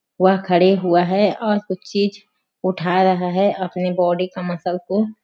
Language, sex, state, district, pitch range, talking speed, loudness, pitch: Hindi, female, Chhattisgarh, Sarguja, 180-200 Hz, 170 wpm, -19 LUFS, 185 Hz